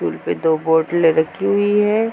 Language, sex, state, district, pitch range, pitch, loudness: Hindi, female, Uttar Pradesh, Hamirpur, 160-205 Hz, 175 Hz, -17 LUFS